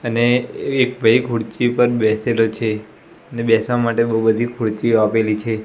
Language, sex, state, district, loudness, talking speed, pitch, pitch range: Gujarati, male, Gujarat, Gandhinagar, -18 LUFS, 160 wpm, 115 Hz, 110-120 Hz